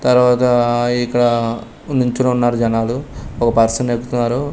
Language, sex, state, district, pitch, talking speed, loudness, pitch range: Telugu, male, Andhra Pradesh, Manyam, 120 Hz, 120 wpm, -16 LUFS, 120-125 Hz